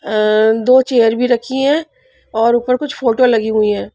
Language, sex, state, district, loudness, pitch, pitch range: Hindi, female, Punjab, Pathankot, -14 LUFS, 240 Hz, 220-260 Hz